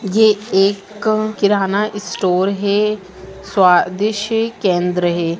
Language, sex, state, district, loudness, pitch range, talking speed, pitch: Hindi, female, Bihar, Gaya, -16 LUFS, 185-210 Hz, 110 wpm, 200 Hz